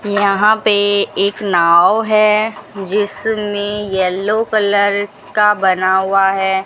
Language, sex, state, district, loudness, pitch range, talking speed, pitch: Hindi, female, Rajasthan, Bikaner, -14 LUFS, 195-210 Hz, 110 wpm, 205 Hz